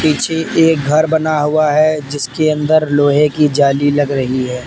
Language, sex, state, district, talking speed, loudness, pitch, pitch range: Hindi, male, Uttar Pradesh, Lalitpur, 180 wpm, -13 LUFS, 150 Hz, 145-155 Hz